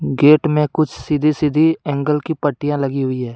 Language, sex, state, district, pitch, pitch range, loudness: Hindi, male, Jharkhand, Deoghar, 150 Hz, 140-155 Hz, -17 LUFS